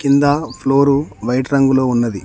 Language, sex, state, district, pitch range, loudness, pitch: Telugu, male, Telangana, Mahabubabad, 125-140 Hz, -15 LUFS, 135 Hz